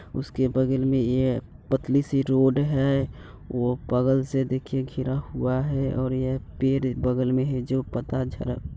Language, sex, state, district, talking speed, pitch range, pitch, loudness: Bajjika, male, Bihar, Vaishali, 170 wpm, 125-135 Hz, 130 Hz, -25 LUFS